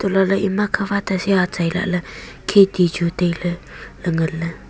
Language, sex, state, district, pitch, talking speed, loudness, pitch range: Wancho, female, Arunachal Pradesh, Longding, 180 Hz, 140 wpm, -19 LUFS, 170-195 Hz